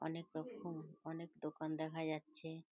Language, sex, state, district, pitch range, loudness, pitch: Bengali, female, West Bengal, North 24 Parganas, 155-165 Hz, -46 LUFS, 160 Hz